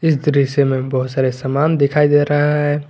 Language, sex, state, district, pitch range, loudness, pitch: Hindi, male, Jharkhand, Garhwa, 135-150 Hz, -16 LUFS, 145 Hz